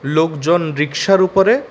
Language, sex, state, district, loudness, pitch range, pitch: Bengali, male, Tripura, West Tripura, -15 LUFS, 150-185 Hz, 160 Hz